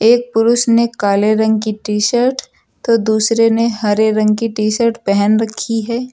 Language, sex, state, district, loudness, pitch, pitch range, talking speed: Hindi, female, Uttar Pradesh, Lucknow, -14 LUFS, 225 Hz, 215-230 Hz, 185 wpm